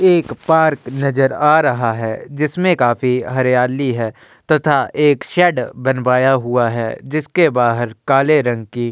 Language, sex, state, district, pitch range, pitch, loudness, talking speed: Hindi, male, Uttar Pradesh, Jyotiba Phule Nagar, 120-155 Hz, 135 Hz, -16 LUFS, 150 wpm